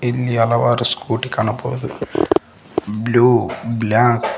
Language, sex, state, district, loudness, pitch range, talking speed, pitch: Kannada, male, Karnataka, Koppal, -18 LUFS, 115-120 Hz, 95 wpm, 120 Hz